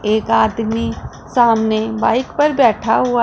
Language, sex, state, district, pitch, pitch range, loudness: Hindi, female, Punjab, Pathankot, 225 Hz, 220-240 Hz, -16 LUFS